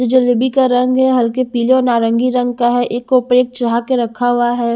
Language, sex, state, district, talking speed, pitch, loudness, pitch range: Hindi, female, Haryana, Charkhi Dadri, 265 wpm, 245 Hz, -14 LUFS, 240-255 Hz